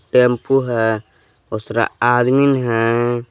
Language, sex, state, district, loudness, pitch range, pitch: Hindi, male, Jharkhand, Palamu, -17 LUFS, 115-125 Hz, 120 Hz